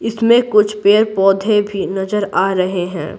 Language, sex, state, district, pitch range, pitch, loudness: Hindi, female, Bihar, Patna, 195-210 Hz, 205 Hz, -15 LUFS